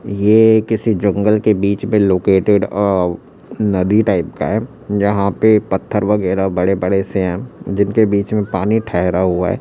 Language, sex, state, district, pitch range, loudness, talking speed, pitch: Hindi, male, Chhattisgarh, Raipur, 95-105 Hz, -15 LUFS, 170 wpm, 100 Hz